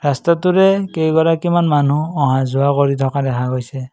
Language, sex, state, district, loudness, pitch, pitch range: Assamese, male, Assam, Kamrup Metropolitan, -16 LUFS, 145 Hz, 135-165 Hz